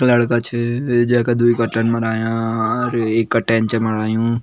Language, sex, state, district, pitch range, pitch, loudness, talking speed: Kumaoni, male, Uttarakhand, Tehri Garhwal, 115-120 Hz, 115 Hz, -18 LUFS, 160 wpm